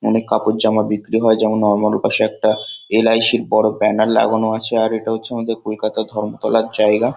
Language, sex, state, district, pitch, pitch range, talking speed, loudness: Bengali, male, West Bengal, Kolkata, 110 Hz, 110-115 Hz, 200 wpm, -16 LUFS